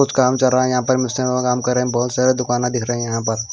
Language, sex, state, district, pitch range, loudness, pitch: Hindi, male, Himachal Pradesh, Shimla, 120-130 Hz, -18 LUFS, 125 Hz